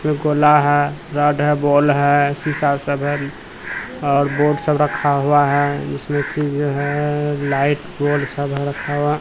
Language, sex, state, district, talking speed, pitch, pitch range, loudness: Hindi, male, Bihar, Katihar, 170 wpm, 145 Hz, 140-150 Hz, -18 LUFS